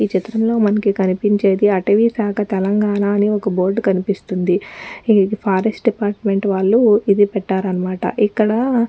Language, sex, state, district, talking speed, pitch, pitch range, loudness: Telugu, female, Telangana, Nalgonda, 120 wpm, 205 Hz, 195-215 Hz, -17 LUFS